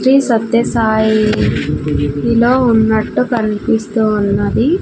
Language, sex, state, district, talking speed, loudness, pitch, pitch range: Telugu, female, Andhra Pradesh, Sri Satya Sai, 85 wpm, -14 LUFS, 230 Hz, 220-245 Hz